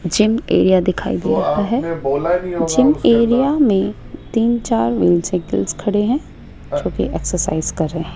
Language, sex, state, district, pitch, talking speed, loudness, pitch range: Hindi, female, Rajasthan, Jaipur, 190 Hz, 145 wpm, -17 LUFS, 170-230 Hz